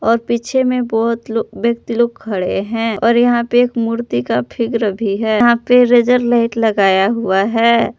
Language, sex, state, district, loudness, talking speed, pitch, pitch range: Hindi, female, Jharkhand, Palamu, -15 LUFS, 190 wpm, 230 Hz, 220-235 Hz